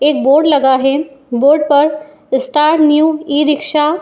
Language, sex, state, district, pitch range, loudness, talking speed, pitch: Hindi, female, Uttar Pradesh, Jyotiba Phule Nagar, 280-300 Hz, -12 LUFS, 165 wpm, 295 Hz